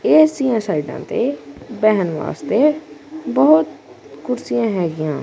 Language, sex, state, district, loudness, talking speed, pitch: Punjabi, male, Punjab, Kapurthala, -18 LUFS, 105 wpm, 230 Hz